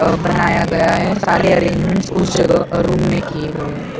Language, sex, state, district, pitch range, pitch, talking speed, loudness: Hindi, male, Maharashtra, Mumbai Suburban, 170-185 Hz, 175 Hz, 195 wpm, -16 LUFS